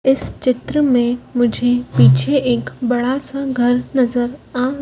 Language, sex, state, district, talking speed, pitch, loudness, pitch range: Hindi, female, Madhya Pradesh, Dhar, 135 wpm, 250 Hz, -17 LUFS, 245-265 Hz